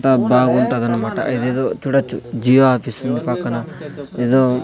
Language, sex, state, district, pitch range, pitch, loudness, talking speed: Telugu, male, Andhra Pradesh, Sri Satya Sai, 125-130 Hz, 125 Hz, -17 LUFS, 115 wpm